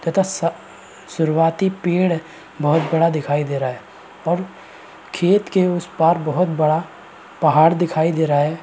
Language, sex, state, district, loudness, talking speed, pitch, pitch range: Hindi, male, Uttar Pradesh, Varanasi, -19 LUFS, 155 wpm, 165 Hz, 155-175 Hz